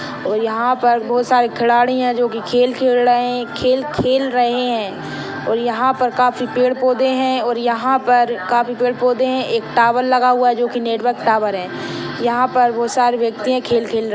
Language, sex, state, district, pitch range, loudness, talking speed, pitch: Hindi, female, Maharashtra, Dhule, 235-250 Hz, -17 LUFS, 205 wpm, 245 Hz